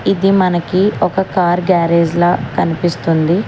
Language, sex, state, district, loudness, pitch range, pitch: Telugu, female, Telangana, Hyderabad, -14 LUFS, 170-190 Hz, 175 Hz